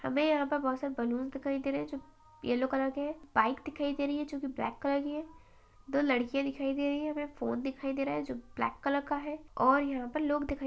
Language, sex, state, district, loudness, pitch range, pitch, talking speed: Hindi, female, Uttar Pradesh, Etah, -33 LUFS, 270-290 Hz, 280 Hz, 280 wpm